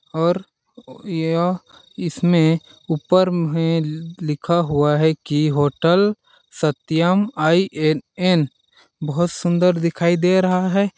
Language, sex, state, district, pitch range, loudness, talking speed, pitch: Hindi, male, Chhattisgarh, Balrampur, 155-180 Hz, -19 LUFS, 100 wpm, 170 Hz